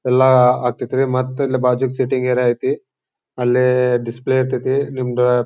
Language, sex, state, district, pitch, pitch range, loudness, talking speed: Kannada, male, Karnataka, Dharwad, 125 Hz, 125-130 Hz, -17 LUFS, 145 wpm